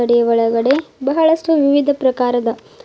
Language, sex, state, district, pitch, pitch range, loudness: Kannada, female, Karnataka, Bidar, 270 Hz, 240-310 Hz, -15 LUFS